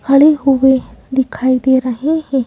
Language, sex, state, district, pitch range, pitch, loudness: Hindi, female, Madhya Pradesh, Bhopal, 260-275 Hz, 265 Hz, -13 LUFS